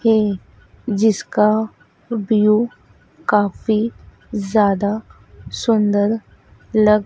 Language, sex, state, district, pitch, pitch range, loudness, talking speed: Hindi, female, Madhya Pradesh, Dhar, 215 Hz, 210-220 Hz, -18 LUFS, 60 wpm